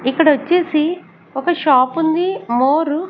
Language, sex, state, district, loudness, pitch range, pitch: Telugu, female, Andhra Pradesh, Sri Satya Sai, -16 LUFS, 270-340 Hz, 310 Hz